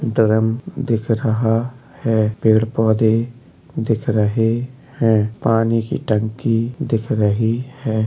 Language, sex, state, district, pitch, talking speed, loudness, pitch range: Hindi, male, Uttar Pradesh, Jalaun, 115 Hz, 110 wpm, -18 LUFS, 110-120 Hz